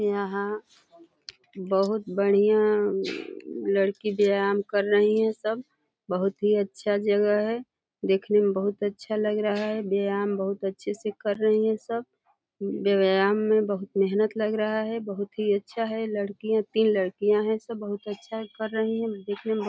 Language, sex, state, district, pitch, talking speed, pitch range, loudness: Hindi, female, Uttar Pradesh, Deoria, 210 Hz, 165 wpm, 200-220 Hz, -26 LUFS